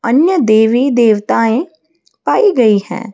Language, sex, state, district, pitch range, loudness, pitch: Hindi, female, Odisha, Malkangiri, 220-315 Hz, -12 LUFS, 235 Hz